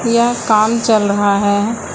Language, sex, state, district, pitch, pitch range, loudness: Hindi, female, Uttar Pradesh, Lucknow, 215 Hz, 205-235 Hz, -14 LUFS